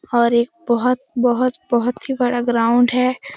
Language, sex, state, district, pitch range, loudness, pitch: Hindi, female, Bihar, Supaul, 240-255 Hz, -18 LUFS, 245 Hz